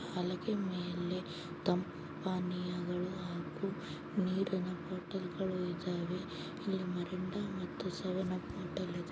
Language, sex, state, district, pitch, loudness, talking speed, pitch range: Kannada, female, Karnataka, Chamarajanagar, 180 Hz, -39 LUFS, 85 wpm, 180-190 Hz